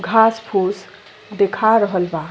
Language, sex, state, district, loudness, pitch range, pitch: Bhojpuri, female, Uttar Pradesh, Ghazipur, -17 LUFS, 190-220 Hz, 205 Hz